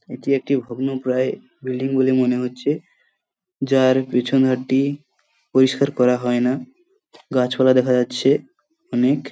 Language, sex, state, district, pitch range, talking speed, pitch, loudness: Bengali, male, West Bengal, Paschim Medinipur, 125-140 Hz, 110 wpm, 130 Hz, -20 LUFS